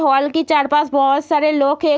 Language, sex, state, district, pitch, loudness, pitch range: Hindi, female, Bihar, Kishanganj, 295 Hz, -16 LUFS, 280-305 Hz